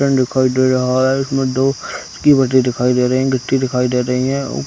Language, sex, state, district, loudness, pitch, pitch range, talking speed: Hindi, male, Chhattisgarh, Raigarh, -15 LUFS, 130 Hz, 125-135 Hz, 165 wpm